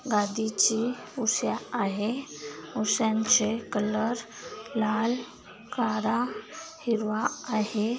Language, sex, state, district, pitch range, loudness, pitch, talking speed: Marathi, female, Maharashtra, Solapur, 215-240 Hz, -28 LUFS, 220 Hz, 70 wpm